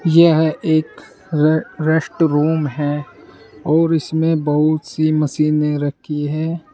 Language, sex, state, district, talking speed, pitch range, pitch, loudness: Hindi, male, Uttar Pradesh, Saharanpur, 115 wpm, 150-160 Hz, 155 Hz, -17 LUFS